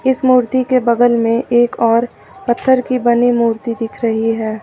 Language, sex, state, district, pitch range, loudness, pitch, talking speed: Hindi, female, Uttar Pradesh, Lucknow, 230-255 Hz, -14 LUFS, 240 Hz, 180 wpm